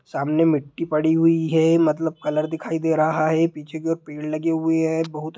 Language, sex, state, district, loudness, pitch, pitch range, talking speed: Hindi, male, Bihar, Sitamarhi, -21 LUFS, 160 Hz, 155-165 Hz, 225 wpm